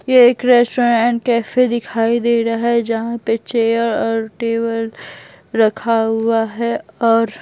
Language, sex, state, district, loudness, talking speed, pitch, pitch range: Hindi, female, Bihar, Patna, -16 LUFS, 145 wpm, 230 Hz, 225-235 Hz